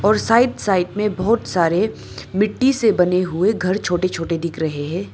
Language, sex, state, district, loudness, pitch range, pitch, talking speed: Hindi, female, Arunachal Pradesh, Lower Dibang Valley, -19 LUFS, 175-210 Hz, 190 Hz, 185 wpm